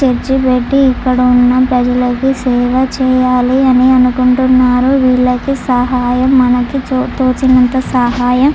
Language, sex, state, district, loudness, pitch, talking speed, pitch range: Telugu, female, Andhra Pradesh, Chittoor, -11 LUFS, 255 Hz, 105 wpm, 250-260 Hz